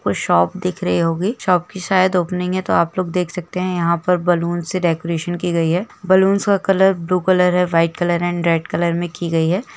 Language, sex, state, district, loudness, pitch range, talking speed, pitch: Hindi, female, Jharkhand, Jamtara, -18 LUFS, 170-185 Hz, 240 wpm, 180 Hz